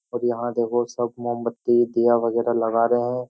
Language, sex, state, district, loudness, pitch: Hindi, male, Uttar Pradesh, Jyotiba Phule Nagar, -22 LUFS, 120 Hz